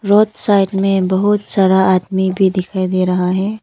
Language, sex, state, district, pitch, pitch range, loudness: Hindi, female, Arunachal Pradesh, Papum Pare, 190 Hz, 185-200 Hz, -14 LUFS